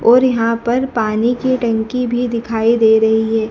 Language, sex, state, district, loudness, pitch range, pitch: Hindi, female, Madhya Pradesh, Dhar, -15 LUFS, 220-245 Hz, 230 Hz